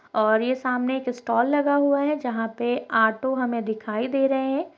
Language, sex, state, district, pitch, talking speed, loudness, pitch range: Hindi, female, Uttar Pradesh, Jalaun, 250 Hz, 200 wpm, -23 LUFS, 225-270 Hz